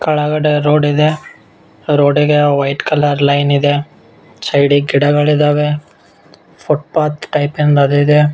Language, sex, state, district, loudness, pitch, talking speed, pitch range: Kannada, male, Karnataka, Bellary, -13 LUFS, 145 Hz, 115 wpm, 145-150 Hz